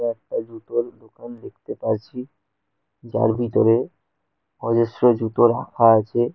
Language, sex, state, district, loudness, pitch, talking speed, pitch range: Bengali, male, West Bengal, Kolkata, -20 LUFS, 115 Hz, 105 wpm, 115-120 Hz